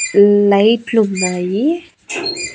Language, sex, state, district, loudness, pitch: Telugu, female, Andhra Pradesh, Annamaya, -14 LUFS, 220 Hz